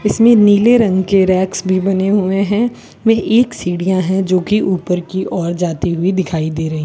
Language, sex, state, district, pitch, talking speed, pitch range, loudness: Hindi, female, Rajasthan, Bikaner, 190 Hz, 210 wpm, 180-205 Hz, -14 LUFS